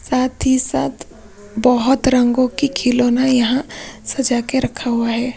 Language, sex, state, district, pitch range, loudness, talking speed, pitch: Hindi, female, Punjab, Pathankot, 240-265 Hz, -17 LUFS, 145 wpm, 250 Hz